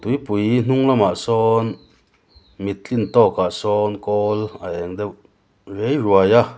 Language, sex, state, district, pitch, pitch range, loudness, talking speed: Mizo, male, Mizoram, Aizawl, 105 Hz, 100-115 Hz, -19 LUFS, 135 wpm